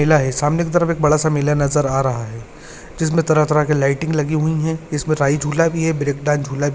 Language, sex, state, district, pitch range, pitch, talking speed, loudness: Hindi, male, Maharashtra, Pune, 145-160 Hz, 150 Hz, 295 wpm, -18 LUFS